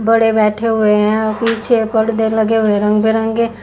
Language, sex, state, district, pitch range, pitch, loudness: Hindi, female, Haryana, Jhajjar, 215-225 Hz, 220 Hz, -14 LUFS